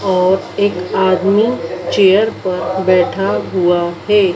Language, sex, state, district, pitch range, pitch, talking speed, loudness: Hindi, female, Madhya Pradesh, Dhar, 185-200 Hz, 190 Hz, 110 wpm, -14 LUFS